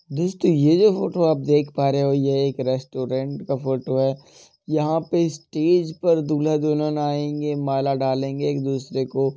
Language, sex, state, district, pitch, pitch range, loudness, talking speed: Hindi, male, Uttar Pradesh, Jalaun, 145 Hz, 135-155 Hz, -22 LUFS, 175 wpm